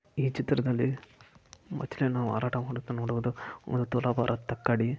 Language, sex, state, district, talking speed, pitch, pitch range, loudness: Kannada, male, Karnataka, Mysore, 70 wpm, 125 Hz, 120-130 Hz, -31 LUFS